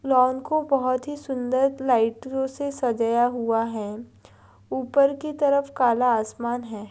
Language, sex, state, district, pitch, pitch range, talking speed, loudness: Hindi, female, Bihar, Madhepura, 255 Hz, 230-275 Hz, 140 wpm, -24 LUFS